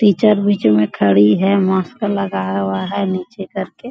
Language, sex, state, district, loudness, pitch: Hindi, female, Bihar, Bhagalpur, -16 LUFS, 185 Hz